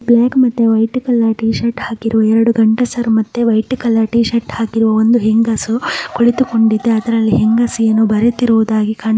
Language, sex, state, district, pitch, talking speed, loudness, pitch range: Kannada, male, Karnataka, Mysore, 225 Hz, 155 wpm, -13 LUFS, 220-235 Hz